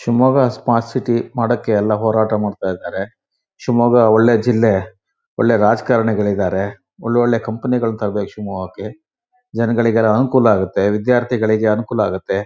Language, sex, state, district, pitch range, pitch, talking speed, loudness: Kannada, male, Karnataka, Shimoga, 105-120 Hz, 115 Hz, 130 wpm, -16 LUFS